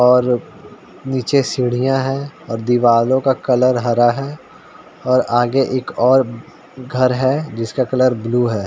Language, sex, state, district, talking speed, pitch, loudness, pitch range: Hindi, male, Uttar Pradesh, Ghazipur, 140 wpm, 130 Hz, -17 LUFS, 120-135 Hz